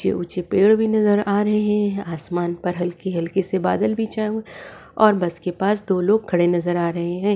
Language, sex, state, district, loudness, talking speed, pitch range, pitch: Hindi, female, Goa, North and South Goa, -20 LUFS, 230 wpm, 175-210 Hz, 195 Hz